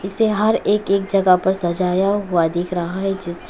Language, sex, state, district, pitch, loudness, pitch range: Hindi, female, Arunachal Pradesh, Papum Pare, 190 Hz, -18 LUFS, 180-200 Hz